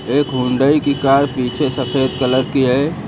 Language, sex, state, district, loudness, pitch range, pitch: Hindi, male, Uttar Pradesh, Lucknow, -16 LUFS, 130-140 Hz, 135 Hz